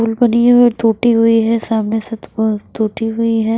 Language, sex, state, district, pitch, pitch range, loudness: Hindi, female, Bihar, West Champaran, 225 Hz, 220-230 Hz, -14 LUFS